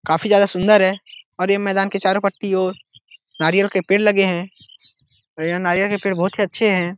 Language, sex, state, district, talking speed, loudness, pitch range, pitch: Hindi, male, Bihar, Jahanabad, 215 wpm, -18 LUFS, 175-200 Hz, 190 Hz